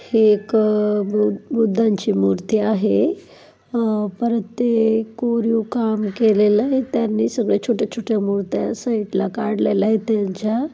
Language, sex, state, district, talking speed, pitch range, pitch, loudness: Marathi, female, Maharashtra, Dhule, 115 wpm, 210-230 Hz, 220 Hz, -19 LUFS